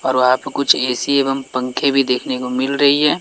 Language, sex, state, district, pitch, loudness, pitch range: Hindi, male, Bihar, West Champaran, 135 Hz, -16 LUFS, 125-140 Hz